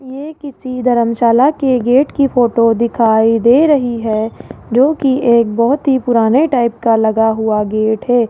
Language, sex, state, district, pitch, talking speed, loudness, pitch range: Hindi, female, Rajasthan, Jaipur, 240 Hz, 160 wpm, -13 LUFS, 225-265 Hz